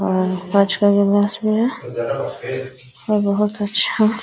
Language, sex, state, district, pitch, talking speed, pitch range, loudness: Hindi, female, Bihar, Araria, 200 Hz, 70 wpm, 185-210 Hz, -18 LUFS